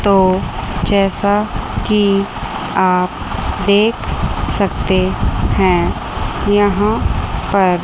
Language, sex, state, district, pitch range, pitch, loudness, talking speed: Hindi, female, Chandigarh, Chandigarh, 185-205 Hz, 200 Hz, -16 LUFS, 70 wpm